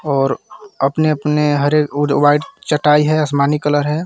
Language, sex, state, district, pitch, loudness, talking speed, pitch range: Hindi, male, Jharkhand, Garhwa, 150 Hz, -15 LUFS, 145 wpm, 145-155 Hz